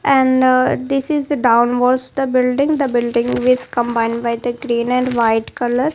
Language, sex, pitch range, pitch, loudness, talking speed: English, female, 240-270 Hz, 250 Hz, -16 LUFS, 170 wpm